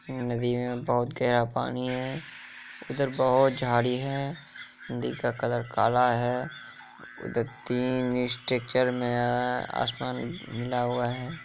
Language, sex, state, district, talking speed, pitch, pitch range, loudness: Hindi, male, Bihar, Kishanganj, 125 wpm, 125 Hz, 120-130 Hz, -28 LUFS